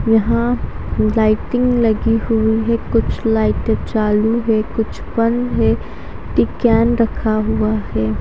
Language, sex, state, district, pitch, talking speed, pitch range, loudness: Hindi, female, Haryana, Charkhi Dadri, 225 Hz, 110 wpm, 215-230 Hz, -17 LUFS